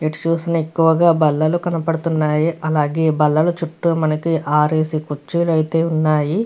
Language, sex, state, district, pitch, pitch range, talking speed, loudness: Telugu, female, Andhra Pradesh, Krishna, 160 Hz, 155-165 Hz, 120 wpm, -17 LUFS